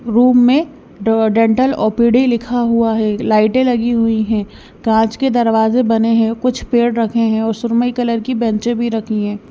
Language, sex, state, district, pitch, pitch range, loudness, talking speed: Hindi, female, Haryana, Rohtak, 230 Hz, 220-240 Hz, -15 LUFS, 185 wpm